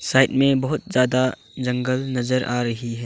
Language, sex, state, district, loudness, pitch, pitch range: Hindi, male, Arunachal Pradesh, Longding, -21 LUFS, 130 Hz, 120-130 Hz